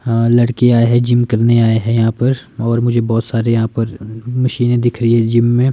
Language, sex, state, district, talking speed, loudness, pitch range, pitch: Hindi, male, Himachal Pradesh, Shimla, 230 wpm, -14 LUFS, 115-120 Hz, 115 Hz